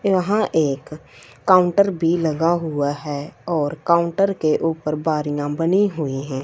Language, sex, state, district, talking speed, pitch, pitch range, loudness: Hindi, female, Punjab, Fazilka, 140 wpm, 160 Hz, 145-175 Hz, -20 LUFS